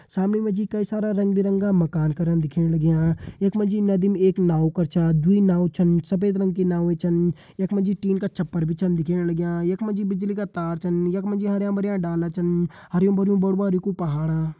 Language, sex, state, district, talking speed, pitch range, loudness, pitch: Hindi, male, Uttarakhand, Uttarkashi, 250 wpm, 170-200 Hz, -22 LUFS, 180 Hz